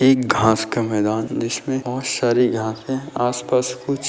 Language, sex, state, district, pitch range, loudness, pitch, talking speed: Hindi, male, Maharashtra, Dhule, 110-130 Hz, -20 LUFS, 125 Hz, 175 wpm